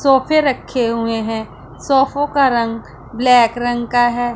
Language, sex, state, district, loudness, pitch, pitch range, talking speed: Hindi, female, Punjab, Pathankot, -16 LUFS, 245 Hz, 230-270 Hz, 150 wpm